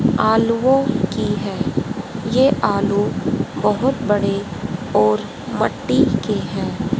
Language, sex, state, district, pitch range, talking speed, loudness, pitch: Hindi, female, Haryana, Rohtak, 200-240 Hz, 95 wpm, -19 LUFS, 210 Hz